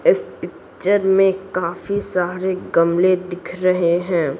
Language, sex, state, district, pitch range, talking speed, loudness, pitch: Hindi, female, Bihar, Patna, 175-190 Hz, 120 wpm, -19 LUFS, 185 Hz